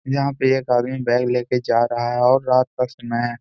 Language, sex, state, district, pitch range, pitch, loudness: Hindi, male, Bihar, Gaya, 120-130 Hz, 125 Hz, -19 LUFS